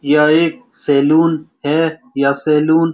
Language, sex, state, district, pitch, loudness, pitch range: Hindi, male, Bihar, Saran, 155 Hz, -15 LUFS, 145-165 Hz